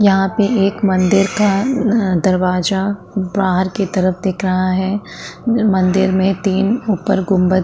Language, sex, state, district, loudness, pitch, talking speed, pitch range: Hindi, female, Uttarakhand, Tehri Garhwal, -16 LUFS, 195 Hz, 150 wpm, 185-205 Hz